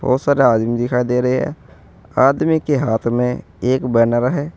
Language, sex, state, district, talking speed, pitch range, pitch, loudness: Hindi, male, Uttar Pradesh, Saharanpur, 185 wpm, 120-140 Hz, 125 Hz, -17 LUFS